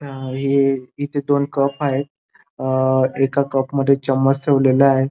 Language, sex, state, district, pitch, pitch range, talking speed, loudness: Marathi, male, Maharashtra, Dhule, 135 Hz, 135-140 Hz, 155 wpm, -18 LUFS